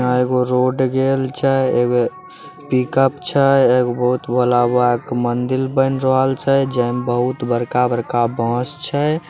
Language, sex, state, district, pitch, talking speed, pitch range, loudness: Maithili, male, Bihar, Samastipur, 125 Hz, 150 wpm, 120-135 Hz, -17 LUFS